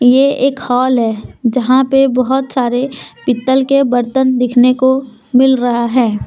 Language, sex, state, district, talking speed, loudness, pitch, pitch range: Hindi, female, Jharkhand, Deoghar, 155 wpm, -13 LUFS, 255 Hz, 245-265 Hz